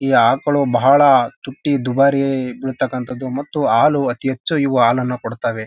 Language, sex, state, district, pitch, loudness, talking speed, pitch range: Kannada, male, Karnataka, Raichur, 135 Hz, -17 LUFS, 135 wpm, 125-140 Hz